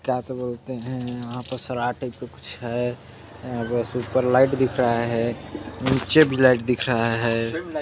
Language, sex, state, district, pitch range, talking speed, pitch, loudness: Hindi, male, Chhattisgarh, Balrampur, 120-130 Hz, 175 wpm, 125 Hz, -23 LUFS